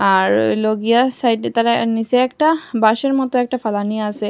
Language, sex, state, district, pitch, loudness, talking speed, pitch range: Bengali, female, Assam, Hailakandi, 230 Hz, -17 LUFS, 180 wpm, 215-255 Hz